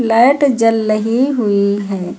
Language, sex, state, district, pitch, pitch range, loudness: Hindi, female, Uttar Pradesh, Lucknow, 225 Hz, 200-240 Hz, -14 LUFS